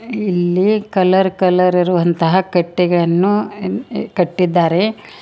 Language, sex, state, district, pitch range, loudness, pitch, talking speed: Kannada, female, Karnataka, Koppal, 175-200 Hz, -15 LUFS, 180 Hz, 70 wpm